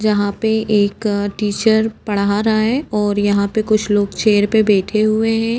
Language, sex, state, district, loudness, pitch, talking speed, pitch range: Hindi, female, Uttar Pradesh, Budaun, -16 LUFS, 215 Hz, 180 wpm, 205-220 Hz